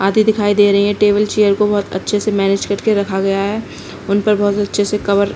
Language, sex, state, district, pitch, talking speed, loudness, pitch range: Hindi, female, Uttar Pradesh, Budaun, 205 Hz, 245 wpm, -15 LUFS, 200-210 Hz